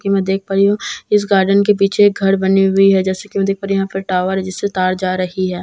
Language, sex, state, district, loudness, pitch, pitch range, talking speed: Hindi, female, Bihar, Katihar, -15 LUFS, 195 Hz, 190-195 Hz, 350 wpm